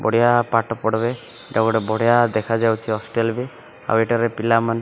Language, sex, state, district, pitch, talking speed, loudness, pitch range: Odia, male, Odisha, Malkangiri, 115 Hz, 175 wpm, -20 LUFS, 110-120 Hz